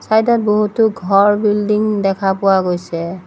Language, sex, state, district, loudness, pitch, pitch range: Assamese, female, Assam, Sonitpur, -15 LUFS, 205 Hz, 190-210 Hz